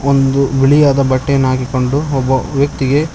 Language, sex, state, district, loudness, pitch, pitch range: Kannada, male, Karnataka, Koppal, -13 LUFS, 135 Hz, 130-140 Hz